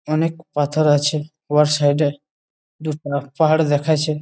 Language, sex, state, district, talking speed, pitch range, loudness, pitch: Bengali, male, West Bengal, Malda, 140 wpm, 145-155 Hz, -19 LUFS, 150 Hz